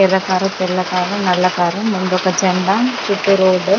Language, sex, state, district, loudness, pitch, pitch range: Telugu, female, Andhra Pradesh, Krishna, -16 LUFS, 185 Hz, 185-195 Hz